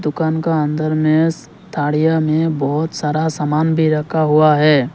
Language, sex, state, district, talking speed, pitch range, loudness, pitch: Hindi, male, Arunachal Pradesh, Lower Dibang Valley, 155 wpm, 150-160 Hz, -16 LUFS, 155 Hz